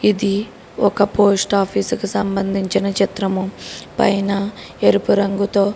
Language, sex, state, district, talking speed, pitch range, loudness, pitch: Telugu, female, Telangana, Karimnagar, 115 wpm, 195-205 Hz, -18 LUFS, 200 Hz